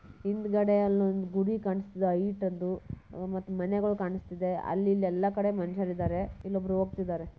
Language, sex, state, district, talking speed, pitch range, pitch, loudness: Kannada, male, Karnataka, Bijapur, 105 wpm, 185-200 Hz, 190 Hz, -31 LUFS